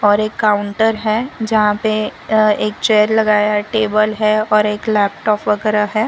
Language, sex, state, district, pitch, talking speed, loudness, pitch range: Hindi, female, Gujarat, Valsad, 215 Hz, 175 wpm, -15 LUFS, 210-220 Hz